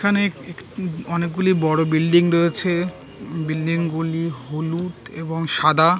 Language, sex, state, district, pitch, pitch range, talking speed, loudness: Bengali, male, West Bengal, North 24 Parganas, 165 Hz, 160-175 Hz, 100 wpm, -21 LUFS